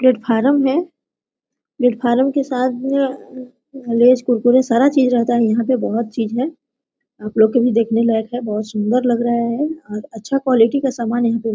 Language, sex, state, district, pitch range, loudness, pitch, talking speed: Hindi, female, Jharkhand, Sahebganj, 230-265 Hz, -17 LUFS, 245 Hz, 170 wpm